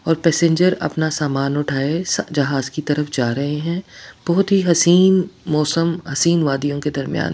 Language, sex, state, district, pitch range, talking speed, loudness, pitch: Hindi, female, Delhi, New Delhi, 145-170 Hz, 155 wpm, -18 LUFS, 155 Hz